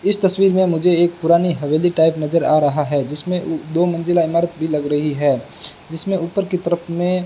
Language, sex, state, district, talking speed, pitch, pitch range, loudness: Hindi, male, Rajasthan, Bikaner, 215 wpm, 170 Hz, 155-180 Hz, -17 LUFS